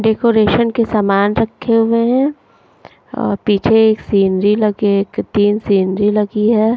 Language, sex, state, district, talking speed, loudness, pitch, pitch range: Hindi, female, Punjab, Fazilka, 140 wpm, -14 LUFS, 215 Hz, 205-225 Hz